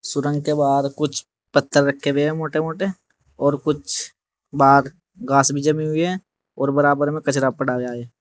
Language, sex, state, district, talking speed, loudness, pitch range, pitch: Hindi, male, Uttar Pradesh, Saharanpur, 175 wpm, -20 LUFS, 140-155 Hz, 145 Hz